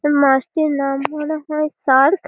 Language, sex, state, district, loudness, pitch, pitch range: Bengali, female, West Bengal, Malda, -18 LUFS, 295 Hz, 275-305 Hz